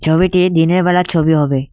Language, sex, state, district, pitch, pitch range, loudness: Bengali, male, West Bengal, Cooch Behar, 165 Hz, 160-180 Hz, -13 LUFS